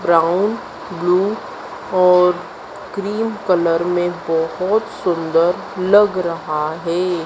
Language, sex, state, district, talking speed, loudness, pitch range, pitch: Hindi, female, Madhya Pradesh, Dhar, 90 wpm, -17 LUFS, 170-195 Hz, 180 Hz